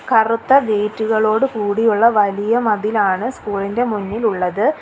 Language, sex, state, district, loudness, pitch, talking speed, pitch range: Malayalam, female, Kerala, Kollam, -17 LUFS, 215 Hz, 110 wpm, 205-230 Hz